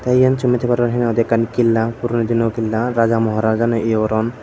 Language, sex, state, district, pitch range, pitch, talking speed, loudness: Chakma, male, Tripura, Dhalai, 115-120 Hz, 115 Hz, 255 wpm, -17 LUFS